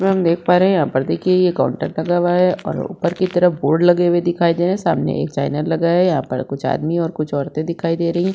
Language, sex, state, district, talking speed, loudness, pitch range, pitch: Hindi, female, Uttar Pradesh, Budaun, 295 wpm, -17 LUFS, 160-180 Hz, 170 Hz